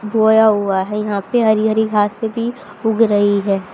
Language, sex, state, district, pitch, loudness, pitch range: Hindi, female, Haryana, Jhajjar, 215 Hz, -16 LUFS, 205-220 Hz